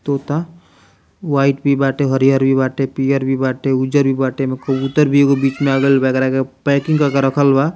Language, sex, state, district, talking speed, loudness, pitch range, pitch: Bhojpuri, male, Bihar, Muzaffarpur, 200 wpm, -16 LUFS, 135-140 Hz, 135 Hz